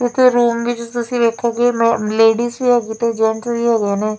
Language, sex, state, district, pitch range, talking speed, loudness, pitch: Punjabi, female, Punjab, Fazilka, 225-240 Hz, 200 wpm, -16 LUFS, 235 Hz